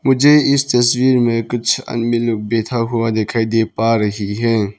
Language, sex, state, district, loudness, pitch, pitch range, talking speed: Hindi, male, Arunachal Pradesh, Lower Dibang Valley, -16 LUFS, 115 Hz, 115-120 Hz, 175 wpm